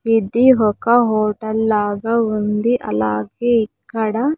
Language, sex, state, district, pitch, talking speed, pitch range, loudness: Telugu, female, Andhra Pradesh, Sri Satya Sai, 220 Hz, 95 wpm, 210-235 Hz, -17 LUFS